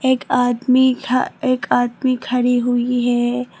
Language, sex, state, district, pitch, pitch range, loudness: Hindi, female, Tripura, Dhalai, 250 Hz, 245-255 Hz, -17 LUFS